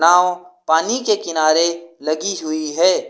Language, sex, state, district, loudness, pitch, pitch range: Hindi, male, Uttar Pradesh, Lucknow, -18 LUFS, 170 Hz, 160-185 Hz